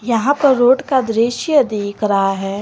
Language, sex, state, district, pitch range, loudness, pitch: Hindi, female, Jharkhand, Garhwa, 205-265 Hz, -15 LUFS, 230 Hz